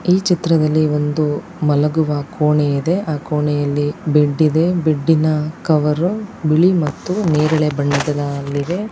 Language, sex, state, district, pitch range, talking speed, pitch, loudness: Kannada, female, Karnataka, Dakshina Kannada, 150-165 Hz, 115 wpm, 155 Hz, -17 LUFS